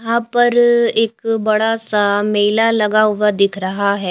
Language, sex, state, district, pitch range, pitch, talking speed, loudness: Hindi, female, Chhattisgarh, Raipur, 205-230 Hz, 215 Hz, 160 wpm, -15 LUFS